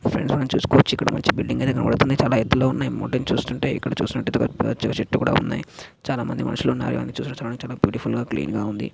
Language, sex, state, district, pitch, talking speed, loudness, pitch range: Telugu, male, Karnataka, Raichur, 115 Hz, 200 wpm, -22 LUFS, 105-130 Hz